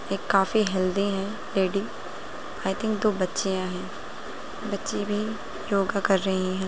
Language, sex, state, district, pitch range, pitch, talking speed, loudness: Hindi, female, Bihar, Jahanabad, 190-205 Hz, 195 Hz, 145 wpm, -26 LUFS